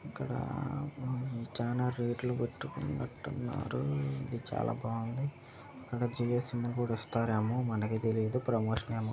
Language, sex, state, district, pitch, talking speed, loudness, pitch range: Telugu, male, Andhra Pradesh, Chittoor, 120 Hz, 110 wpm, -35 LUFS, 115-125 Hz